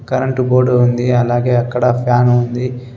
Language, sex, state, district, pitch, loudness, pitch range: Telugu, male, Telangana, Adilabad, 125 Hz, -14 LUFS, 120-125 Hz